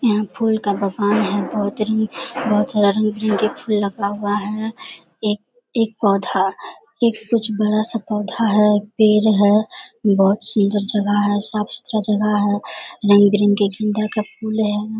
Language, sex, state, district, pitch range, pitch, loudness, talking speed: Hindi, female, Bihar, Vaishali, 205-220 Hz, 210 Hz, -19 LUFS, 130 wpm